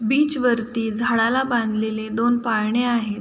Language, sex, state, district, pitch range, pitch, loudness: Marathi, female, Maharashtra, Sindhudurg, 220-245 Hz, 230 Hz, -21 LUFS